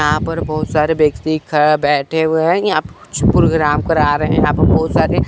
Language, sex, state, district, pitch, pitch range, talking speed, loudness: Hindi, male, Chandigarh, Chandigarh, 155 Hz, 150-160 Hz, 225 wpm, -15 LUFS